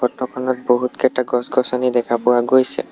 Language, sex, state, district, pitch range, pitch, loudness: Assamese, male, Assam, Sonitpur, 125-130 Hz, 125 Hz, -18 LUFS